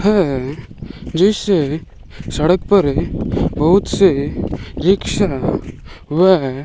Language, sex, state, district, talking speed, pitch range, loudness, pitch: Hindi, male, Rajasthan, Bikaner, 70 wpm, 145-195 Hz, -16 LUFS, 170 Hz